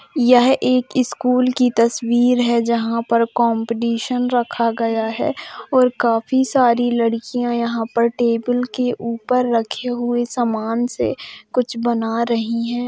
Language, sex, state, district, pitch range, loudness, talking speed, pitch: Hindi, female, Jharkhand, Jamtara, 230-250 Hz, -18 LUFS, 135 wpm, 235 Hz